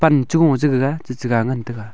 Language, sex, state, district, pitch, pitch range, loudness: Wancho, male, Arunachal Pradesh, Longding, 130 Hz, 120-150 Hz, -18 LUFS